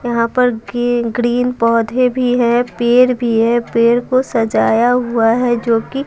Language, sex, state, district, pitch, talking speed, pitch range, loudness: Hindi, female, Bihar, Patna, 240 Hz, 170 wpm, 230-245 Hz, -14 LUFS